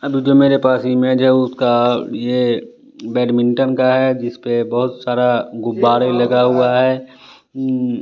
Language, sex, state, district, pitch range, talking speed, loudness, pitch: Hindi, male, Bihar, West Champaran, 120-130 Hz, 150 wpm, -16 LUFS, 125 Hz